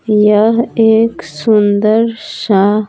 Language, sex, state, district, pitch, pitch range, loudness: Hindi, female, Bihar, Patna, 220 Hz, 210-230 Hz, -11 LUFS